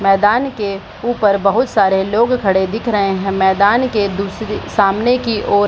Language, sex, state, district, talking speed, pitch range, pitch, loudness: Hindi, female, Bihar, Supaul, 180 wpm, 195-225 Hz, 205 Hz, -15 LUFS